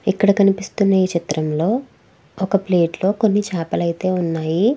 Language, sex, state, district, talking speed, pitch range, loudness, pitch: Telugu, female, Andhra Pradesh, Krishna, 140 wpm, 170-200 Hz, -19 LUFS, 190 Hz